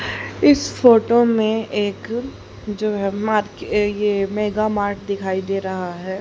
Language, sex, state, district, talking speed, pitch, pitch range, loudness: Hindi, female, Haryana, Rohtak, 135 wpm, 210 Hz, 195-220 Hz, -19 LUFS